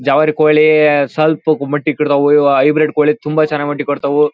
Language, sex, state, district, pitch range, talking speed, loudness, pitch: Kannada, male, Karnataka, Bellary, 145-155 Hz, 165 wpm, -13 LUFS, 150 Hz